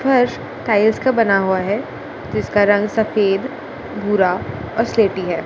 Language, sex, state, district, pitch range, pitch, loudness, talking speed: Hindi, female, Gujarat, Gandhinagar, 195-225 Hz, 205 Hz, -18 LUFS, 145 wpm